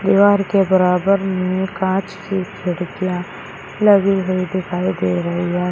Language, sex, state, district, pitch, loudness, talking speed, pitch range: Hindi, male, Uttar Pradesh, Shamli, 185 Hz, -18 LUFS, 135 wpm, 180-195 Hz